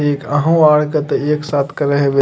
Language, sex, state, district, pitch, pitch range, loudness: Maithili, male, Bihar, Madhepura, 145 Hz, 140-150 Hz, -15 LUFS